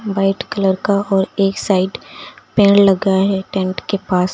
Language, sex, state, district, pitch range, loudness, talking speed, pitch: Hindi, female, Uttar Pradesh, Lucknow, 190-200 Hz, -16 LUFS, 165 wpm, 195 Hz